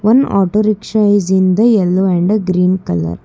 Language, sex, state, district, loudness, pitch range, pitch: English, female, Karnataka, Bangalore, -13 LUFS, 185-215 Hz, 190 Hz